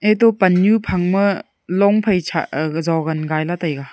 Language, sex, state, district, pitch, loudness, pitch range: Wancho, female, Arunachal Pradesh, Longding, 180 Hz, -17 LUFS, 160-200 Hz